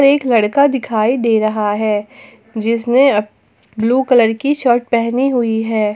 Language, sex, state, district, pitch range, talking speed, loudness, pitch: Hindi, female, Jharkhand, Ranchi, 220-260 Hz, 150 wpm, -15 LUFS, 235 Hz